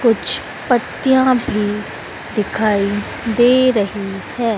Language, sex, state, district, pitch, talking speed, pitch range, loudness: Hindi, female, Madhya Pradesh, Dhar, 215 Hz, 90 wpm, 205-245 Hz, -17 LUFS